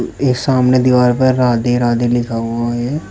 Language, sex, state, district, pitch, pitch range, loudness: Hindi, male, Uttar Pradesh, Shamli, 125 Hz, 120-130 Hz, -14 LUFS